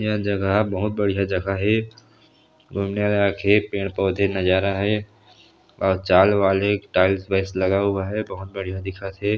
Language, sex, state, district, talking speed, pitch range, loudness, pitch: Chhattisgarhi, male, Chhattisgarh, Sarguja, 155 wpm, 95-105 Hz, -21 LUFS, 100 Hz